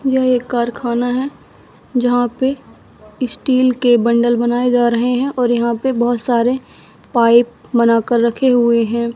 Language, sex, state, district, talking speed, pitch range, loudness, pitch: Hindi, female, Madhya Pradesh, Katni, 155 wpm, 235-255 Hz, -15 LUFS, 240 Hz